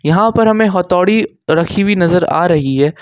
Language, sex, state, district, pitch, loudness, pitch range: Hindi, male, Jharkhand, Ranchi, 180 Hz, -13 LUFS, 160-205 Hz